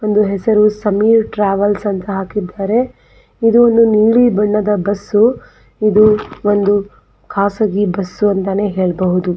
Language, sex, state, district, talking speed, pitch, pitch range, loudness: Kannada, female, Karnataka, Belgaum, 110 wpm, 205 Hz, 200-215 Hz, -14 LUFS